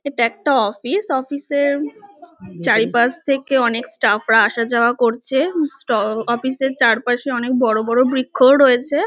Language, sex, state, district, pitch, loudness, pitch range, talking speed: Bengali, female, West Bengal, North 24 Parganas, 255 Hz, -17 LUFS, 235-280 Hz, 160 wpm